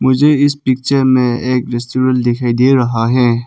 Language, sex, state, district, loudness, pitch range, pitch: Hindi, male, Arunachal Pradesh, Papum Pare, -13 LUFS, 120-130 Hz, 125 Hz